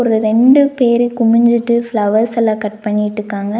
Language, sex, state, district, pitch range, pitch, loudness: Tamil, female, Tamil Nadu, Nilgiris, 215-235 Hz, 230 Hz, -13 LUFS